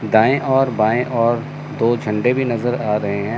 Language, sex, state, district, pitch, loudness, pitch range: Hindi, male, Chandigarh, Chandigarh, 120 Hz, -18 LUFS, 110-130 Hz